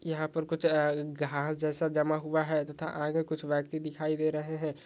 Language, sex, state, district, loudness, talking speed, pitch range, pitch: Hindi, male, Rajasthan, Churu, -31 LUFS, 200 wpm, 150-160 Hz, 155 Hz